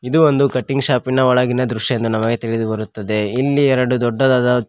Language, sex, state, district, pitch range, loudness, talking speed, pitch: Kannada, male, Karnataka, Koppal, 115-130 Hz, -17 LUFS, 165 wpm, 125 Hz